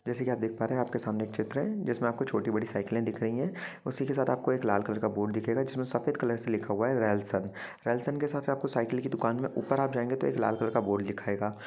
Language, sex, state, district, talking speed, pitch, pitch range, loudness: Hindi, male, Jharkhand, Jamtara, 285 wpm, 115 Hz, 110-130 Hz, -31 LUFS